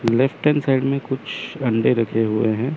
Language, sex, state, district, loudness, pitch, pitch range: Hindi, male, Chandigarh, Chandigarh, -20 LUFS, 125 Hz, 115-135 Hz